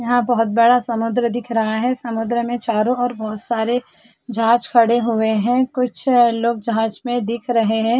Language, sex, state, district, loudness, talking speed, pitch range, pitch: Hindi, female, Chhattisgarh, Bilaspur, -18 LUFS, 180 wpm, 225-245 Hz, 235 Hz